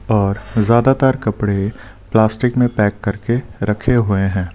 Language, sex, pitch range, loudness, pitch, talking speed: Hindi, male, 100-120 Hz, -17 LUFS, 105 Hz, 130 wpm